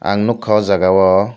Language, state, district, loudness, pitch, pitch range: Kokborok, Tripura, Dhalai, -14 LUFS, 100 Hz, 95-105 Hz